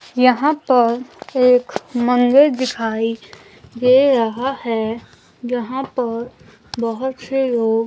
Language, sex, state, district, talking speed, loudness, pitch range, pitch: Hindi, female, Himachal Pradesh, Shimla, 100 wpm, -18 LUFS, 230-265 Hz, 250 Hz